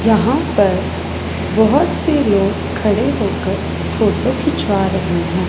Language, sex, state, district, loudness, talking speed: Hindi, female, Punjab, Pathankot, -16 LUFS, 120 wpm